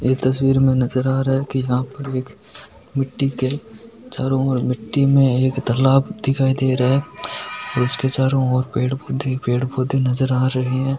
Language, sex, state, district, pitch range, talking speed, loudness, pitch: Hindi, male, Rajasthan, Nagaur, 130-135 Hz, 175 wpm, -19 LUFS, 130 Hz